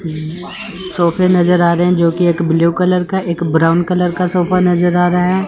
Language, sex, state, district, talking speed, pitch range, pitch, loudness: Hindi, male, Chandigarh, Chandigarh, 205 wpm, 170-180 Hz, 175 Hz, -14 LUFS